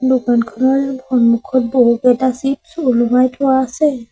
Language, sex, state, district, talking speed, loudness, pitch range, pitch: Assamese, female, Assam, Sonitpur, 100 wpm, -15 LUFS, 245-265 Hz, 255 Hz